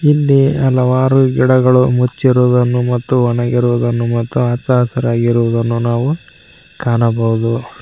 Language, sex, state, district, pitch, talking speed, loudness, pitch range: Kannada, male, Karnataka, Koppal, 125 Hz, 85 wpm, -13 LUFS, 120-130 Hz